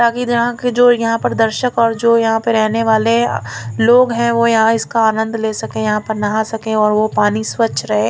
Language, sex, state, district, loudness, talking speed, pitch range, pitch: Hindi, female, Punjab, Fazilka, -15 LUFS, 215 wpm, 220-235 Hz, 225 Hz